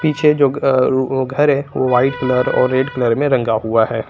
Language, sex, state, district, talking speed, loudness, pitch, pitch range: Hindi, male, Jharkhand, Palamu, 235 wpm, -16 LUFS, 130 Hz, 125-140 Hz